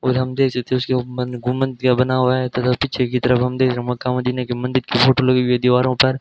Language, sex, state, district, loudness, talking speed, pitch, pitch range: Hindi, male, Rajasthan, Bikaner, -18 LUFS, 270 wpm, 125 Hz, 125-130 Hz